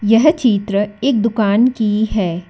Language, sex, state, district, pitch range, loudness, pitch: Hindi, female, Karnataka, Bangalore, 205-235 Hz, -15 LUFS, 215 Hz